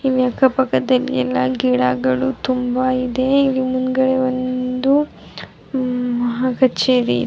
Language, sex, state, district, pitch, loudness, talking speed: Kannada, female, Karnataka, Raichur, 255 Hz, -18 LUFS, 90 wpm